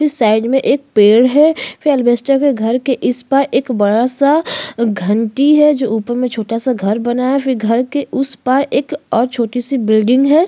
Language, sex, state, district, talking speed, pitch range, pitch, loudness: Hindi, female, Maharashtra, Aurangabad, 200 wpm, 230-275 Hz, 255 Hz, -14 LUFS